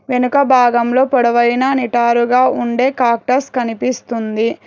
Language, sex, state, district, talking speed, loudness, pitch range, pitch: Telugu, female, Telangana, Hyderabad, 90 wpm, -14 LUFS, 235-255 Hz, 245 Hz